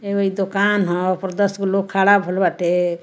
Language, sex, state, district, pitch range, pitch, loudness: Bhojpuri, female, Bihar, Muzaffarpur, 180-200 Hz, 195 Hz, -18 LUFS